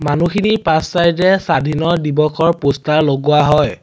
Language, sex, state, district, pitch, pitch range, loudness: Assamese, male, Assam, Sonitpur, 155 Hz, 150-170 Hz, -14 LUFS